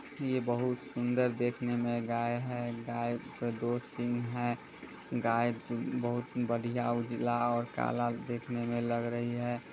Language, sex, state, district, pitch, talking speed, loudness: Hindi, male, Bihar, Muzaffarpur, 120 Hz, 140 wpm, -34 LUFS